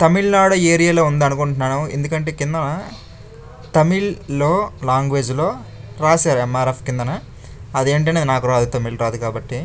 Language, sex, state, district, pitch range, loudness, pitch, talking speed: Telugu, male, Andhra Pradesh, Chittoor, 125-160 Hz, -18 LUFS, 140 Hz, 145 wpm